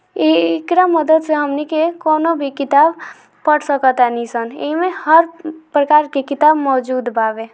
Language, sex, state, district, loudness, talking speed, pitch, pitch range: Hindi, female, Bihar, Gopalganj, -15 LUFS, 145 wpm, 295 Hz, 255-315 Hz